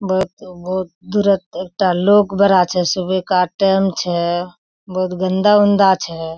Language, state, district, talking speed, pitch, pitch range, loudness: Surjapuri, Bihar, Kishanganj, 120 wpm, 185 Hz, 180-195 Hz, -16 LUFS